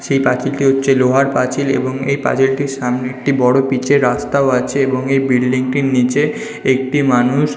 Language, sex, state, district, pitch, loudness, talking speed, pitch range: Bengali, male, West Bengal, North 24 Parganas, 135 Hz, -15 LUFS, 165 wpm, 130-140 Hz